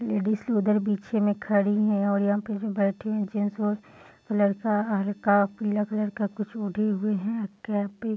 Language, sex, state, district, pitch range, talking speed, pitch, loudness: Hindi, female, Bihar, Bhagalpur, 205-215 Hz, 215 wpm, 210 Hz, -26 LUFS